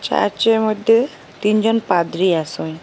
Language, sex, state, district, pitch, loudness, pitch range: Bengali, female, Assam, Hailakandi, 210 Hz, -17 LUFS, 175-225 Hz